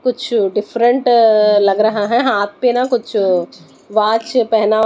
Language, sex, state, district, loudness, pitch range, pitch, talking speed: Hindi, female, Odisha, Nuapada, -14 LUFS, 210-245 Hz, 220 Hz, 135 wpm